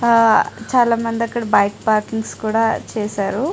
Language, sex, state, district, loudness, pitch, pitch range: Telugu, female, Andhra Pradesh, Guntur, -18 LUFS, 225 Hz, 215-230 Hz